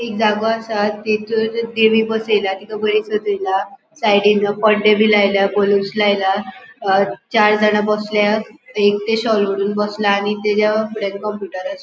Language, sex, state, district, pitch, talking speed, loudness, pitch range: Konkani, female, Goa, North and South Goa, 210 Hz, 130 wpm, -17 LUFS, 200-220 Hz